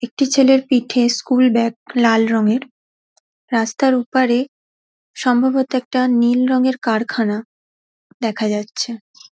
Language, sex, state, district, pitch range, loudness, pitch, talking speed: Bengali, female, West Bengal, Dakshin Dinajpur, 230-260 Hz, -17 LUFS, 245 Hz, 110 wpm